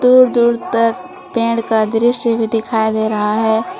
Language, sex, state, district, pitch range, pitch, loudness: Hindi, female, Jharkhand, Palamu, 220-235 Hz, 230 Hz, -15 LUFS